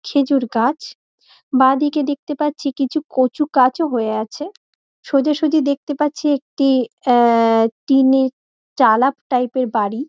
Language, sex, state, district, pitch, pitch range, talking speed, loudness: Bengali, female, West Bengal, Dakshin Dinajpur, 270 Hz, 250-295 Hz, 130 wpm, -17 LUFS